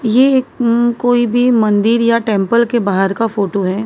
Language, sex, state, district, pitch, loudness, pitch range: Hindi, female, Maharashtra, Mumbai Suburban, 230 Hz, -14 LUFS, 205-240 Hz